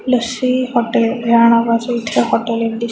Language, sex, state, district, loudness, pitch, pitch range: Marathi, female, Maharashtra, Chandrapur, -15 LUFS, 235 Hz, 230-250 Hz